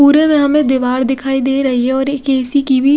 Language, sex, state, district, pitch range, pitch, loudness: Hindi, female, Odisha, Khordha, 260-285 Hz, 270 Hz, -13 LUFS